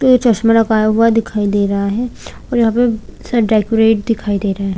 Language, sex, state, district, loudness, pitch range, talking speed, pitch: Hindi, female, Chhattisgarh, Korba, -14 LUFS, 205-230 Hz, 200 wpm, 225 Hz